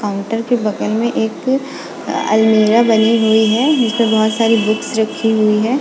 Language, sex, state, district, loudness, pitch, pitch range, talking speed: Hindi, female, Goa, North and South Goa, -14 LUFS, 220 Hz, 215-230 Hz, 165 wpm